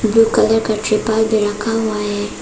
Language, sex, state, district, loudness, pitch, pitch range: Hindi, female, Arunachal Pradesh, Papum Pare, -16 LUFS, 220 Hz, 210-225 Hz